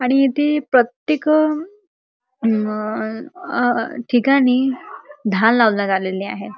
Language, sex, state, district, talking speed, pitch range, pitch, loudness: Marathi, male, Maharashtra, Chandrapur, 90 wpm, 220-295 Hz, 250 Hz, -18 LUFS